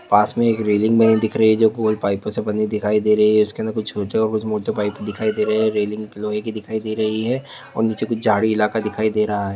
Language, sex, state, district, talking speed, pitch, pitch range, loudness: Hindi, male, Chhattisgarh, Balrampur, 280 wpm, 110 Hz, 105-110 Hz, -19 LUFS